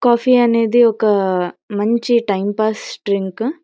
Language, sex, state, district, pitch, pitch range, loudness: Telugu, female, Karnataka, Bellary, 220 Hz, 200-235 Hz, -16 LUFS